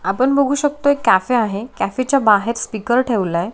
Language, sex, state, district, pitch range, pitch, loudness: Marathi, female, Maharashtra, Solapur, 210-275 Hz, 235 Hz, -17 LUFS